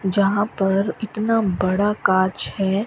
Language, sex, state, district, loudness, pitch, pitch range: Hindi, female, Rajasthan, Bikaner, -20 LUFS, 200 Hz, 190-210 Hz